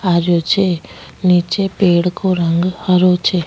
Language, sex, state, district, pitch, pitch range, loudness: Rajasthani, female, Rajasthan, Nagaur, 180 Hz, 175-185 Hz, -15 LUFS